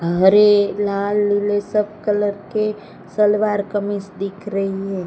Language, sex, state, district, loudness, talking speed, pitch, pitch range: Hindi, female, Gujarat, Gandhinagar, -18 LUFS, 130 wpm, 205 Hz, 195-210 Hz